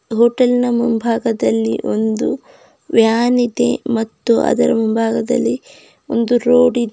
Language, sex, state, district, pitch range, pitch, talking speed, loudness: Kannada, female, Karnataka, Bidar, 225-245 Hz, 235 Hz, 105 wpm, -16 LUFS